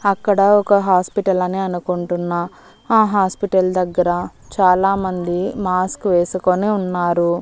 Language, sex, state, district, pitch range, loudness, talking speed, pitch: Telugu, female, Andhra Pradesh, Annamaya, 180-200 Hz, -17 LUFS, 105 wpm, 185 Hz